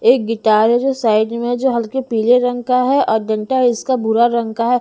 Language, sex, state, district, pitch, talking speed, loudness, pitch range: Hindi, female, Bihar, Patna, 240 Hz, 235 wpm, -16 LUFS, 225-255 Hz